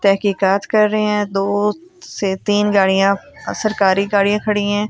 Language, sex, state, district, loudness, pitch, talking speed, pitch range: Hindi, female, Delhi, New Delhi, -17 LUFS, 205 Hz, 170 wpm, 195-210 Hz